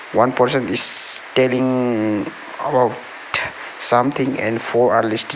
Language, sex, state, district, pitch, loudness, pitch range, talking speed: English, male, Sikkim, Gangtok, 125 Hz, -18 LUFS, 110-130 Hz, 135 wpm